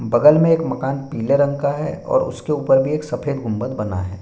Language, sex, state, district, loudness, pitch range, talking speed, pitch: Hindi, male, Bihar, Bhagalpur, -19 LUFS, 120-150 Hz, 240 wpm, 140 Hz